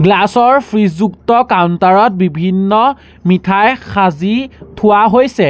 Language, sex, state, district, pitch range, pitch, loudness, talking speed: Assamese, male, Assam, Sonitpur, 185-235 Hz, 205 Hz, -11 LUFS, 120 wpm